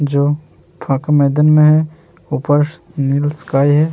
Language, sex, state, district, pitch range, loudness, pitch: Hindi, male, Bihar, Vaishali, 140-155 Hz, -15 LUFS, 150 Hz